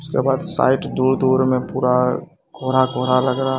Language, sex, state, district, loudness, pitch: Hindi, male, Bihar, Katihar, -18 LUFS, 130 Hz